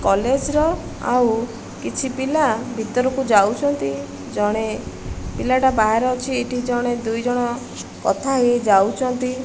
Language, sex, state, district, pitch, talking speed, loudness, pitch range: Odia, female, Odisha, Malkangiri, 245 Hz, 115 wpm, -20 LUFS, 220-260 Hz